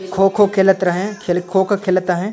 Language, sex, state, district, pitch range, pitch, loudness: Sadri, male, Chhattisgarh, Jashpur, 185-195 Hz, 190 Hz, -16 LUFS